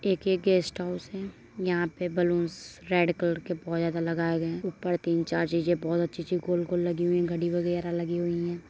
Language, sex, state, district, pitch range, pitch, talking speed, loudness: Hindi, female, Uttar Pradesh, Muzaffarnagar, 170-180 Hz, 175 Hz, 250 wpm, -28 LUFS